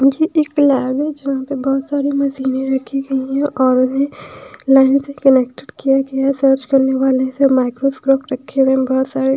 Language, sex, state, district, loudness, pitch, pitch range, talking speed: Hindi, female, Bihar, West Champaran, -16 LUFS, 270 Hz, 265-275 Hz, 190 wpm